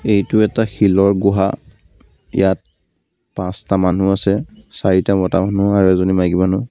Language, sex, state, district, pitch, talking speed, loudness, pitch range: Assamese, male, Assam, Kamrup Metropolitan, 95 Hz, 125 wpm, -16 LUFS, 95-100 Hz